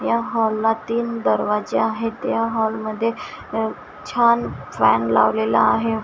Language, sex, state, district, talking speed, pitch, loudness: Marathi, female, Maharashtra, Washim, 130 wpm, 220 Hz, -20 LUFS